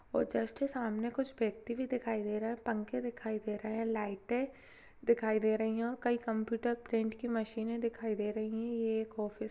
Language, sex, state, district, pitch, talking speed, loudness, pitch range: Hindi, female, Chhattisgarh, Jashpur, 225 Hz, 215 wpm, -36 LUFS, 220-235 Hz